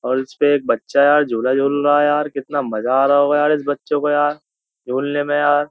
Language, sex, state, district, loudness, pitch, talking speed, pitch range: Hindi, male, Uttar Pradesh, Jyotiba Phule Nagar, -17 LUFS, 145 Hz, 250 wpm, 140-145 Hz